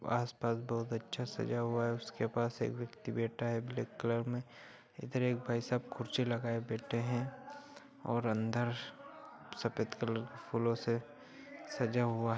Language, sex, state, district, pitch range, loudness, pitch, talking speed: Hindi, male, Bihar, Bhagalpur, 115-125 Hz, -37 LUFS, 120 Hz, 155 wpm